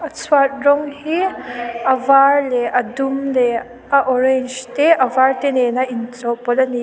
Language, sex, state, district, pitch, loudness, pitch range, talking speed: Mizo, female, Mizoram, Aizawl, 260 Hz, -17 LUFS, 245-280 Hz, 165 wpm